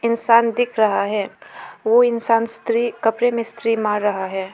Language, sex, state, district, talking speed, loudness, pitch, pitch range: Hindi, female, Arunachal Pradesh, Lower Dibang Valley, 170 wpm, -19 LUFS, 230 Hz, 210-235 Hz